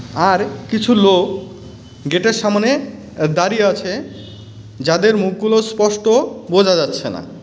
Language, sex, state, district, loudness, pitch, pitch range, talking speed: Bengali, male, West Bengal, Cooch Behar, -16 LUFS, 190 Hz, 155-220 Hz, 120 wpm